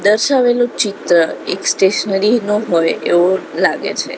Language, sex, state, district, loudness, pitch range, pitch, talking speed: Gujarati, female, Gujarat, Gandhinagar, -15 LUFS, 185-225 Hz, 205 Hz, 130 wpm